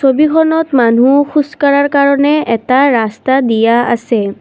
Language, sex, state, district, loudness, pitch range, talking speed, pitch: Assamese, female, Assam, Kamrup Metropolitan, -11 LUFS, 235-285 Hz, 120 wpm, 270 Hz